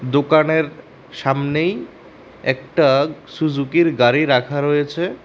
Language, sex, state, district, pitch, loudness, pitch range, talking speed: Bengali, male, Tripura, West Tripura, 145 Hz, -18 LUFS, 140-160 Hz, 90 wpm